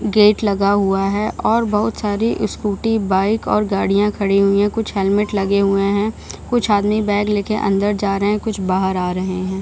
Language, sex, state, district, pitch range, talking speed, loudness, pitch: Hindi, female, Bihar, Jahanabad, 195-210 Hz, 205 wpm, -17 LUFS, 205 Hz